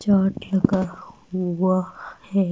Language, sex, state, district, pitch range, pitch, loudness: Hindi, female, Delhi, New Delhi, 185-200 Hz, 190 Hz, -23 LUFS